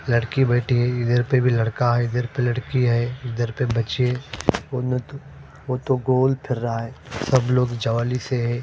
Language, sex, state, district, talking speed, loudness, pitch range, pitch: Hindi, male, Punjab, Fazilka, 175 wpm, -22 LUFS, 120-130 Hz, 125 Hz